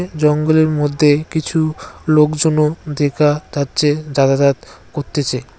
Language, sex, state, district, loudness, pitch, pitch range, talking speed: Bengali, male, West Bengal, Cooch Behar, -16 LUFS, 150 Hz, 145-155 Hz, 85 wpm